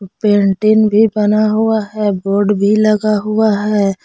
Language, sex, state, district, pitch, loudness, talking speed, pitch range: Hindi, female, Jharkhand, Palamu, 210 Hz, -13 LUFS, 150 wpm, 205-215 Hz